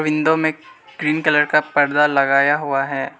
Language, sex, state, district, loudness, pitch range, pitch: Hindi, male, Arunachal Pradesh, Lower Dibang Valley, -17 LUFS, 140-155 Hz, 150 Hz